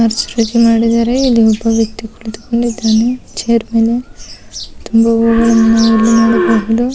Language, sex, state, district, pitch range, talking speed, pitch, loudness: Kannada, female, Karnataka, Mysore, 225-230 Hz, 70 wpm, 230 Hz, -12 LUFS